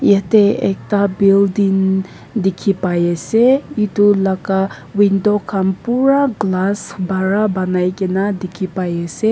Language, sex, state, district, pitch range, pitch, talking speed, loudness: Nagamese, female, Nagaland, Kohima, 190-205 Hz, 195 Hz, 105 wpm, -16 LUFS